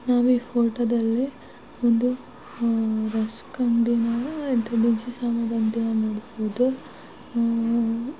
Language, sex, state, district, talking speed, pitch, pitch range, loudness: Kannada, female, Karnataka, Shimoga, 65 wpm, 235 Hz, 230-245 Hz, -24 LUFS